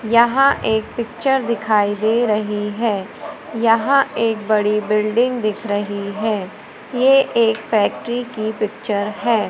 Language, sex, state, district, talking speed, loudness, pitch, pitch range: Hindi, female, Madhya Pradesh, Umaria, 125 wpm, -18 LUFS, 220 Hz, 210-235 Hz